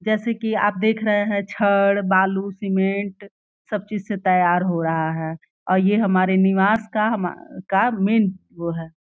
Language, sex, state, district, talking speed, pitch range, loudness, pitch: Hindi, female, Uttar Pradesh, Gorakhpur, 180 wpm, 185-210 Hz, -20 LUFS, 195 Hz